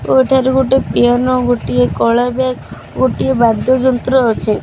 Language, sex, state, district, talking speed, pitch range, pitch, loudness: Odia, female, Odisha, Khordha, 130 wpm, 230-260 Hz, 250 Hz, -13 LUFS